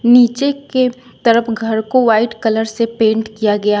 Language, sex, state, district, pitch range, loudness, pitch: Hindi, female, Uttar Pradesh, Shamli, 220-245 Hz, -15 LUFS, 230 Hz